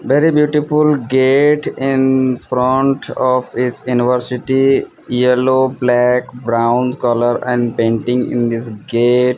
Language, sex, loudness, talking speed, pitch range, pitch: English, male, -15 LUFS, 110 wpm, 120-130 Hz, 125 Hz